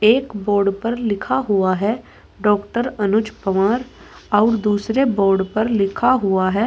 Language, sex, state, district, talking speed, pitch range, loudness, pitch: Hindi, female, Uttar Pradesh, Saharanpur, 145 wpm, 200-230 Hz, -19 LUFS, 210 Hz